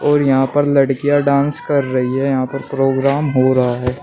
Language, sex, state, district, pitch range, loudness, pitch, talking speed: Hindi, male, Uttar Pradesh, Shamli, 130-145 Hz, -16 LUFS, 135 Hz, 195 wpm